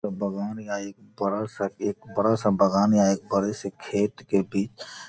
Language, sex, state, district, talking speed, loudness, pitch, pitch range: Hindi, male, Bihar, Gopalganj, 200 wpm, -26 LUFS, 100 Hz, 100-105 Hz